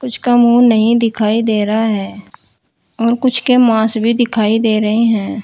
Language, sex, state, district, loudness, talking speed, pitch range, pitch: Hindi, female, Uttar Pradesh, Saharanpur, -13 LUFS, 190 wpm, 220-240 Hz, 225 Hz